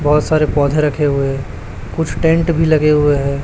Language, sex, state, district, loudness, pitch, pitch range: Hindi, male, Chhattisgarh, Raipur, -15 LUFS, 150 Hz, 140-155 Hz